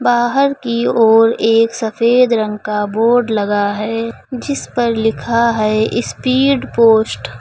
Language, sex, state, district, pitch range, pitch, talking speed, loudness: Hindi, female, Uttar Pradesh, Lucknow, 220-240 Hz, 230 Hz, 135 wpm, -14 LUFS